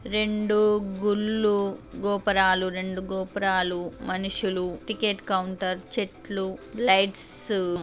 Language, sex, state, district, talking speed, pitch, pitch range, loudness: Telugu, female, Andhra Pradesh, Chittoor, 85 wpm, 195 Hz, 185-210 Hz, -26 LUFS